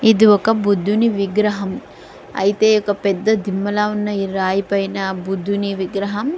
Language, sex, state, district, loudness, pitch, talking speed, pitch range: Telugu, female, Andhra Pradesh, Guntur, -18 LUFS, 200 Hz, 140 wpm, 195-210 Hz